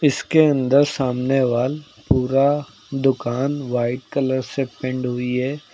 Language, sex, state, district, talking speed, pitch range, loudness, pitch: Hindi, male, Uttar Pradesh, Lucknow, 125 wpm, 125-140 Hz, -20 LUFS, 130 Hz